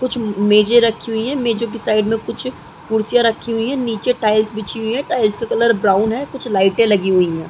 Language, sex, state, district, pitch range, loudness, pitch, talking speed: Hindi, female, Uttar Pradesh, Muzaffarnagar, 215-235 Hz, -17 LUFS, 225 Hz, 230 wpm